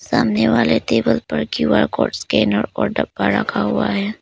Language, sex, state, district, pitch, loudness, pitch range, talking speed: Hindi, female, Arunachal Pradesh, Papum Pare, 110 Hz, -18 LUFS, 105-115 Hz, 170 wpm